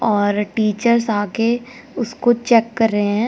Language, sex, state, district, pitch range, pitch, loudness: Hindi, female, Delhi, New Delhi, 210-240 Hz, 225 Hz, -18 LUFS